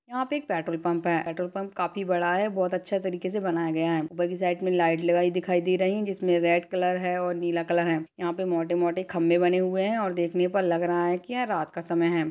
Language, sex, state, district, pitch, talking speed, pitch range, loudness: Hindi, female, Chhattisgarh, Sarguja, 175 Hz, 265 wpm, 170-185 Hz, -26 LUFS